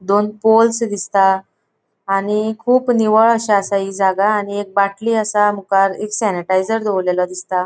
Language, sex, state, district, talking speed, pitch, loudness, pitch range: Konkani, female, Goa, North and South Goa, 150 wpm, 205 Hz, -16 LUFS, 195-220 Hz